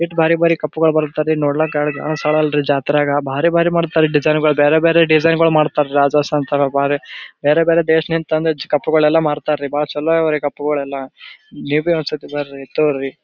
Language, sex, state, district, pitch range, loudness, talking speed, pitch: Kannada, male, Karnataka, Gulbarga, 145-160 Hz, -16 LUFS, 160 wpm, 150 Hz